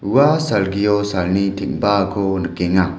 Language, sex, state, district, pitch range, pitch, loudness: Garo, male, Meghalaya, West Garo Hills, 95-105 Hz, 100 Hz, -18 LUFS